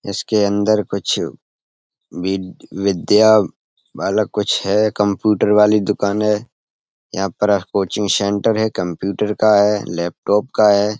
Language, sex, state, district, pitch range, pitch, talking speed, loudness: Hindi, male, Uttar Pradesh, Etah, 100-105 Hz, 105 Hz, 125 wpm, -17 LUFS